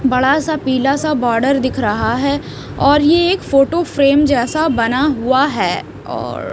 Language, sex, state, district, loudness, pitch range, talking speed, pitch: Hindi, female, Himachal Pradesh, Shimla, -15 LUFS, 260-300 Hz, 155 wpm, 275 Hz